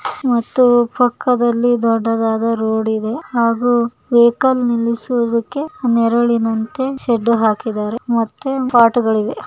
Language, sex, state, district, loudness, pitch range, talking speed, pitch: Kannada, female, Karnataka, Bellary, -16 LUFS, 230-245 Hz, 90 wpm, 235 Hz